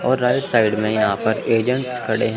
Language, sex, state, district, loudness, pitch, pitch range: Hindi, male, Chandigarh, Chandigarh, -19 LUFS, 115 Hz, 110-125 Hz